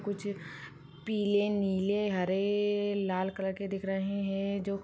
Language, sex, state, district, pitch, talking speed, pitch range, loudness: Hindi, female, Rajasthan, Churu, 195 Hz, 125 wpm, 190-205 Hz, -32 LUFS